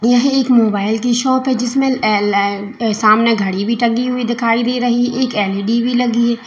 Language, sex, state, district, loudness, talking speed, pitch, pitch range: Hindi, female, Uttar Pradesh, Lalitpur, -15 LUFS, 195 wpm, 235 Hz, 215-245 Hz